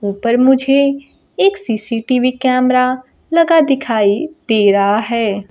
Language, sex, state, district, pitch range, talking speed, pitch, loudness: Hindi, female, Bihar, Kaimur, 220-275 Hz, 110 wpm, 255 Hz, -14 LUFS